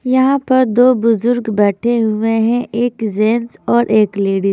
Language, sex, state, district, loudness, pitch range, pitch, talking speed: Hindi, female, Haryana, Charkhi Dadri, -14 LUFS, 215-245 Hz, 230 Hz, 160 wpm